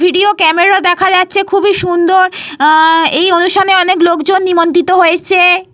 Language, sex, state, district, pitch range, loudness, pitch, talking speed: Bengali, female, Jharkhand, Jamtara, 340-375 Hz, -9 LUFS, 360 Hz, 135 wpm